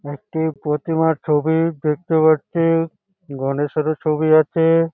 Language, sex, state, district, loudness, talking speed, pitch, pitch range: Bengali, male, West Bengal, Jhargram, -19 LUFS, 95 wpm, 160 Hz, 150-165 Hz